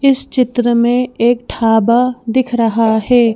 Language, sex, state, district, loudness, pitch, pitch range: Hindi, female, Madhya Pradesh, Bhopal, -13 LUFS, 240 Hz, 230-250 Hz